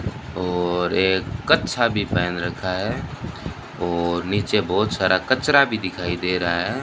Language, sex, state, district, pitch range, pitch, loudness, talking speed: Hindi, male, Rajasthan, Bikaner, 90-110 Hz, 95 Hz, -21 LUFS, 150 wpm